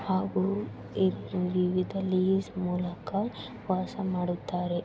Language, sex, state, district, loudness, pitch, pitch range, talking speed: Kannada, female, Karnataka, Belgaum, -30 LUFS, 185 Hz, 180-190 Hz, 85 wpm